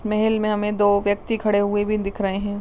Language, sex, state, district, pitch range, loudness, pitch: Hindi, female, Rajasthan, Nagaur, 205-215 Hz, -21 LUFS, 205 Hz